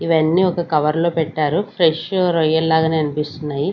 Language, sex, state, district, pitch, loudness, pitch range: Telugu, female, Andhra Pradesh, Sri Satya Sai, 160 Hz, -18 LUFS, 150-170 Hz